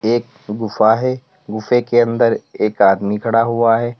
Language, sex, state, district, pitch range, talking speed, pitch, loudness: Hindi, male, Uttar Pradesh, Lalitpur, 110-120 Hz, 165 wpm, 115 Hz, -16 LUFS